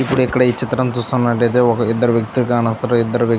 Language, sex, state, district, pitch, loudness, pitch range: Telugu, male, Andhra Pradesh, Chittoor, 120 Hz, -16 LUFS, 120-125 Hz